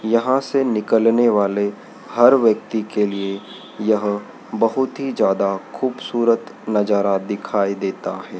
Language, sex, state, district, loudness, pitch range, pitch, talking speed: Hindi, male, Madhya Pradesh, Dhar, -19 LUFS, 100-115 Hz, 105 Hz, 120 wpm